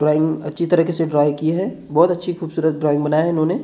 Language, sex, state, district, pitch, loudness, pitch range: Hindi, male, Maharashtra, Gondia, 160 Hz, -19 LUFS, 150-170 Hz